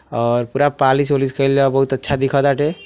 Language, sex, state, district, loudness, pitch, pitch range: Bhojpuri, male, Uttar Pradesh, Deoria, -17 LUFS, 135 Hz, 135-140 Hz